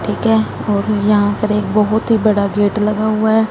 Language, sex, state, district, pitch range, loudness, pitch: Hindi, female, Punjab, Fazilka, 205-220 Hz, -15 LUFS, 210 Hz